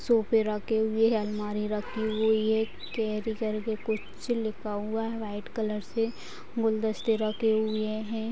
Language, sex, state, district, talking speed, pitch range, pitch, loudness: Hindi, female, Bihar, Sitamarhi, 150 wpm, 215-225 Hz, 220 Hz, -29 LUFS